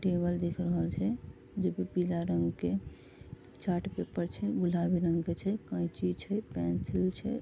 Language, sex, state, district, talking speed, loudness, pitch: Maithili, female, Bihar, Vaishali, 160 wpm, -33 LUFS, 170 Hz